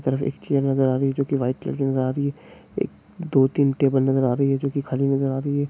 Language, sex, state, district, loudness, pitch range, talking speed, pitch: Hindi, male, Jharkhand, Jamtara, -22 LUFS, 135-140 Hz, 335 wpm, 135 Hz